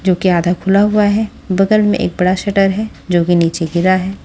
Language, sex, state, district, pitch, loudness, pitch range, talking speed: Hindi, female, Maharashtra, Washim, 190 Hz, -14 LUFS, 175-205 Hz, 240 wpm